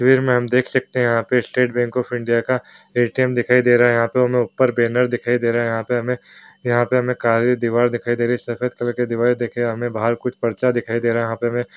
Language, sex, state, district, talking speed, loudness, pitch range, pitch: Hindi, male, Bihar, Gaya, 260 wpm, -19 LUFS, 120-125 Hz, 120 Hz